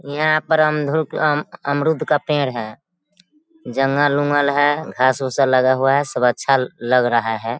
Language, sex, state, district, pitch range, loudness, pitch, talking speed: Hindi, female, Bihar, Sitamarhi, 130-155 Hz, -18 LUFS, 140 Hz, 150 wpm